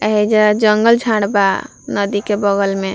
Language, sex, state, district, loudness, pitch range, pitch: Bhojpuri, female, Bihar, Gopalganj, -15 LUFS, 200-215 Hz, 205 Hz